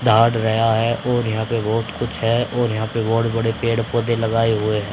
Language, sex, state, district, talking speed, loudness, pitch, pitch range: Hindi, male, Haryana, Charkhi Dadri, 230 wpm, -19 LUFS, 115 Hz, 110-115 Hz